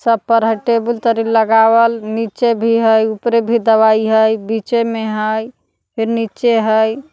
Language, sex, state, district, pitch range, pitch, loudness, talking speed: Magahi, female, Jharkhand, Palamu, 220-230 Hz, 225 Hz, -14 LUFS, 160 wpm